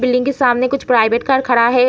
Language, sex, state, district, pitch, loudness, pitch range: Hindi, female, Bihar, Jamui, 250 Hz, -14 LUFS, 240-265 Hz